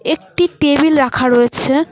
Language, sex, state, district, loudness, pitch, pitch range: Bengali, female, West Bengal, Cooch Behar, -13 LUFS, 270 Hz, 245-305 Hz